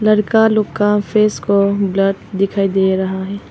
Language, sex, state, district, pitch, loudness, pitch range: Hindi, female, Arunachal Pradesh, Longding, 200 Hz, -15 LUFS, 195-210 Hz